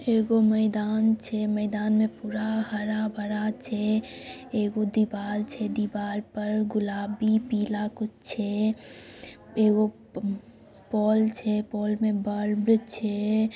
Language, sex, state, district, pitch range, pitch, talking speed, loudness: Maithili, female, Bihar, Samastipur, 210-220 Hz, 215 Hz, 105 wpm, -27 LUFS